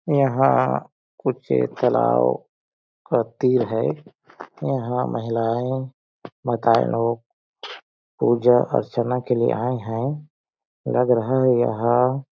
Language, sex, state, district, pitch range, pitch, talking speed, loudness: Hindi, male, Chhattisgarh, Balrampur, 115-130 Hz, 120 Hz, 100 wpm, -21 LUFS